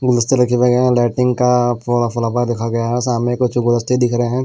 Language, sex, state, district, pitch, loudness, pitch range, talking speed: Hindi, male, Delhi, New Delhi, 120 Hz, -16 LUFS, 120-125 Hz, 245 wpm